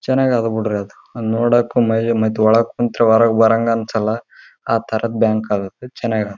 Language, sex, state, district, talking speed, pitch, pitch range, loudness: Kannada, male, Karnataka, Raichur, 105 wpm, 115 Hz, 110-115 Hz, -17 LUFS